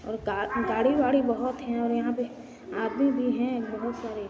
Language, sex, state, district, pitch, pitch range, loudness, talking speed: Hindi, female, Chhattisgarh, Sarguja, 245 Hz, 225-255 Hz, -27 LUFS, 180 wpm